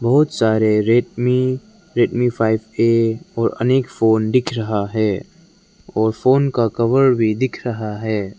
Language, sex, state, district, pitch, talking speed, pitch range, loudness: Hindi, male, Arunachal Pradesh, Lower Dibang Valley, 115 Hz, 150 wpm, 110-130 Hz, -18 LUFS